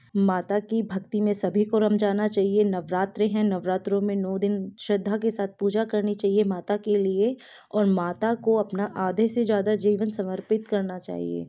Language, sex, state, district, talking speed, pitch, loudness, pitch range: Hindi, female, Uttar Pradesh, Gorakhpur, 185 wpm, 205 Hz, -25 LUFS, 190-215 Hz